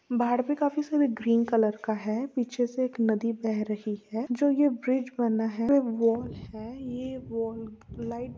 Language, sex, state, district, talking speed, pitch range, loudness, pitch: Hindi, female, Andhra Pradesh, Chittoor, 150 wpm, 225-255 Hz, -28 LUFS, 235 Hz